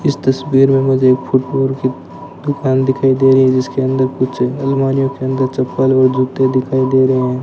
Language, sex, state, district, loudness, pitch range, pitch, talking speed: Hindi, male, Rajasthan, Bikaner, -14 LUFS, 130-135 Hz, 130 Hz, 200 wpm